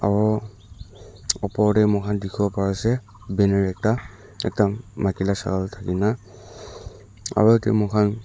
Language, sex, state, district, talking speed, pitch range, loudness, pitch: Nagamese, male, Nagaland, Dimapur, 155 wpm, 100-110 Hz, -22 LUFS, 105 Hz